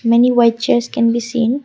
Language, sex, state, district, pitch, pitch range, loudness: English, female, Assam, Kamrup Metropolitan, 235 Hz, 230-240 Hz, -15 LUFS